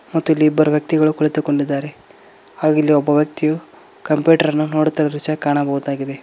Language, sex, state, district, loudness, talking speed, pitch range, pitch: Kannada, male, Karnataka, Koppal, -17 LUFS, 135 wpm, 145-155 Hz, 150 Hz